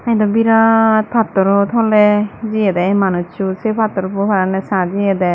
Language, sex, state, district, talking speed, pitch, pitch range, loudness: Chakma, female, Tripura, Dhalai, 170 wpm, 205 Hz, 190-220 Hz, -14 LUFS